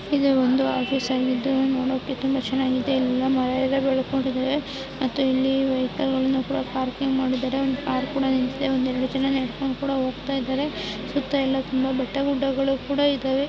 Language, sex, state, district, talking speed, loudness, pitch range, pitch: Kannada, female, Karnataka, Dakshina Kannada, 125 wpm, -24 LUFS, 260-275 Hz, 265 Hz